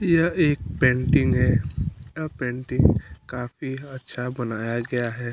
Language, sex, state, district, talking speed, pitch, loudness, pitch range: Hindi, male, Chhattisgarh, Kabirdham, 135 wpm, 125 Hz, -24 LUFS, 120-140 Hz